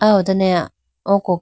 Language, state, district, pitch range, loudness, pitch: Idu Mishmi, Arunachal Pradesh, Lower Dibang Valley, 145-200 Hz, -17 LUFS, 185 Hz